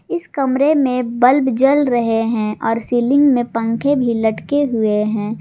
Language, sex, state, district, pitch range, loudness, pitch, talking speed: Hindi, female, Jharkhand, Garhwa, 225-275 Hz, -16 LUFS, 245 Hz, 165 wpm